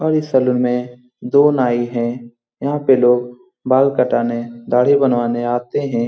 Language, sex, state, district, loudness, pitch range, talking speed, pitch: Hindi, male, Bihar, Lakhisarai, -16 LUFS, 120-135 Hz, 160 wpm, 125 Hz